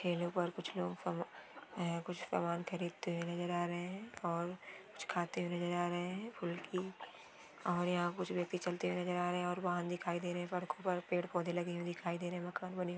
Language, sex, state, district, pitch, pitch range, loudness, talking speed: Hindi, female, West Bengal, Jhargram, 175 Hz, 175-180 Hz, -40 LUFS, 245 wpm